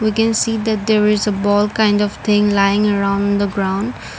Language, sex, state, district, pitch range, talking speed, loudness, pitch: English, female, Assam, Kamrup Metropolitan, 200-215 Hz, 215 wpm, -16 LUFS, 205 Hz